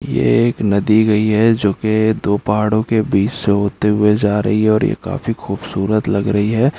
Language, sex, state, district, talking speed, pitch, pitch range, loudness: Hindi, male, Uttarakhand, Uttarkashi, 210 wpm, 105 Hz, 105-110 Hz, -16 LUFS